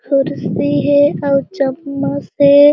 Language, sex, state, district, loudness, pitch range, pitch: Chhattisgarhi, female, Chhattisgarh, Jashpur, -15 LUFS, 275-285 Hz, 280 Hz